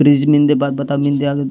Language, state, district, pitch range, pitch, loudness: Gondi, Chhattisgarh, Sukma, 140-145 Hz, 140 Hz, -15 LUFS